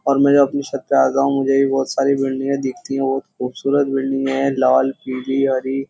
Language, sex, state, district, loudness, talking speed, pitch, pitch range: Hindi, male, Uttar Pradesh, Jyotiba Phule Nagar, -18 LUFS, 235 wpm, 135 Hz, 135-140 Hz